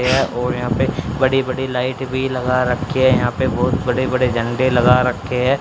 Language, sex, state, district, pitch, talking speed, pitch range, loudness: Hindi, male, Haryana, Rohtak, 125 Hz, 205 wpm, 125-130 Hz, -18 LUFS